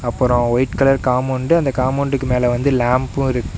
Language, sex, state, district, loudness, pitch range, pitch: Tamil, male, Tamil Nadu, Namakkal, -17 LUFS, 125-135 Hz, 130 Hz